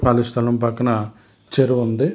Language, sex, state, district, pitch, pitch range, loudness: Telugu, male, Telangana, Hyderabad, 120 Hz, 115-125 Hz, -19 LUFS